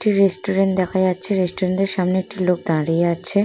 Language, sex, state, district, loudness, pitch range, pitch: Bengali, female, West Bengal, Purulia, -18 LUFS, 180-195 Hz, 185 Hz